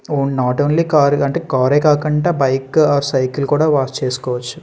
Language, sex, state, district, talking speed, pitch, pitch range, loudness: Telugu, male, Andhra Pradesh, Srikakulam, 170 wpm, 140 Hz, 130-150 Hz, -16 LUFS